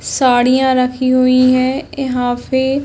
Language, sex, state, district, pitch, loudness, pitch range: Hindi, female, Uttar Pradesh, Hamirpur, 255 Hz, -14 LUFS, 255-265 Hz